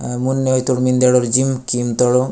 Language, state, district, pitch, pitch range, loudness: Gondi, Chhattisgarh, Sukma, 125 Hz, 125-130 Hz, -16 LUFS